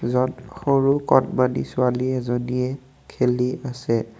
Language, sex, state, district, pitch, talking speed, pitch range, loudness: Assamese, male, Assam, Kamrup Metropolitan, 125 Hz, 85 wpm, 125-130 Hz, -22 LUFS